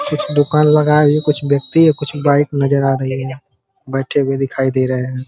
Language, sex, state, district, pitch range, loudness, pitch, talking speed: Hindi, male, Uttar Pradesh, Ghazipur, 130-150 Hz, -15 LUFS, 140 Hz, 225 wpm